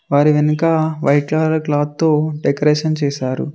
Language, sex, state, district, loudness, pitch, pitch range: Telugu, male, Telangana, Mahabubabad, -16 LUFS, 150 Hz, 145-160 Hz